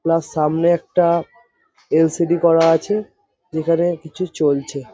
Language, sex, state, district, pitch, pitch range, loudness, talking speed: Bengali, male, West Bengal, Jhargram, 170 Hz, 160-185 Hz, -18 LUFS, 110 wpm